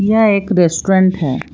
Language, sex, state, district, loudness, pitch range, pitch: Hindi, female, Jharkhand, Palamu, -13 LUFS, 175-200 Hz, 190 Hz